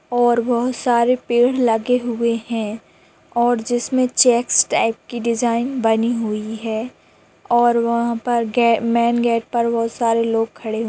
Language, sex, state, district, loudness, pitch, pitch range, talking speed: Hindi, female, Jharkhand, Sahebganj, -18 LUFS, 235 Hz, 230-240 Hz, 140 wpm